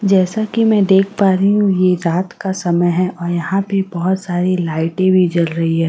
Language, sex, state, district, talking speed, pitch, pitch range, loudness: Hindi, female, Delhi, New Delhi, 225 wpm, 185 Hz, 175-195 Hz, -15 LUFS